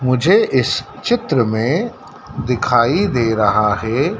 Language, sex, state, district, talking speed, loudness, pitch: Hindi, male, Madhya Pradesh, Dhar, 115 wpm, -16 LUFS, 125 Hz